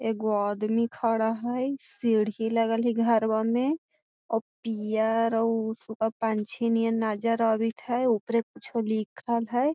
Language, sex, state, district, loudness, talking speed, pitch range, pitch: Magahi, female, Bihar, Gaya, -27 LUFS, 135 wpm, 220-235 Hz, 225 Hz